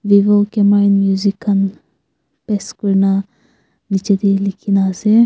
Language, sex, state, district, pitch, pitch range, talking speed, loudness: Nagamese, female, Nagaland, Kohima, 200 Hz, 195-205 Hz, 150 wpm, -15 LUFS